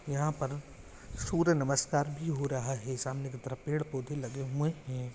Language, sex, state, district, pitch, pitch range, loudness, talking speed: Hindi, male, Jharkhand, Jamtara, 135 Hz, 130-145 Hz, -34 LUFS, 185 wpm